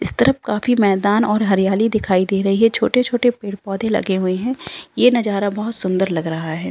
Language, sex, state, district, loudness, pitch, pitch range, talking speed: Hindi, female, Uttarakhand, Uttarkashi, -18 LUFS, 210 Hz, 190-230 Hz, 195 wpm